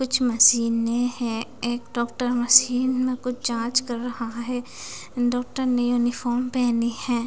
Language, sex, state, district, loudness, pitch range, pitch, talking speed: Hindi, female, Bihar, West Champaran, -22 LUFS, 235-250 Hz, 245 Hz, 140 wpm